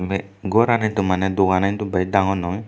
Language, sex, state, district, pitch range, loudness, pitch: Chakma, male, Tripura, Unakoti, 95-100 Hz, -20 LUFS, 95 Hz